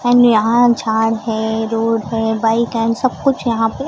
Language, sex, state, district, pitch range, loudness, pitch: Hindi, female, Maharashtra, Gondia, 225-235 Hz, -15 LUFS, 225 Hz